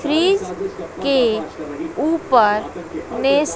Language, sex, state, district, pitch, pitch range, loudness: Hindi, female, Bihar, West Champaran, 295 Hz, 245-330 Hz, -19 LUFS